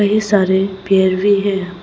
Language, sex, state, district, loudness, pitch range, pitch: Hindi, female, Arunachal Pradesh, Papum Pare, -15 LUFS, 190-205 Hz, 195 Hz